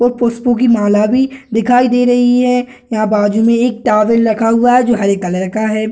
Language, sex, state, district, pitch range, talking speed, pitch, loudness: Hindi, male, Bihar, Gaya, 215-245 Hz, 215 wpm, 235 Hz, -12 LUFS